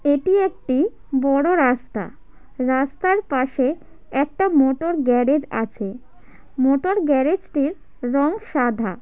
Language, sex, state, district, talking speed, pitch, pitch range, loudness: Bengali, female, West Bengal, Paschim Medinipur, 100 wpm, 280 Hz, 260-330 Hz, -20 LUFS